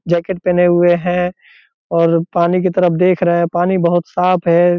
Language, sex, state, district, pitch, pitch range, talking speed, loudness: Hindi, male, Bihar, Purnia, 175 Hz, 170-180 Hz, 190 wpm, -14 LUFS